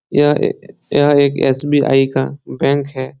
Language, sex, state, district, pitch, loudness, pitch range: Hindi, male, Bihar, Jahanabad, 140 Hz, -15 LUFS, 135-145 Hz